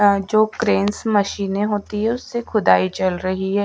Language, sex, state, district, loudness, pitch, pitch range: Hindi, female, Odisha, Malkangiri, -19 LUFS, 205 Hz, 195-215 Hz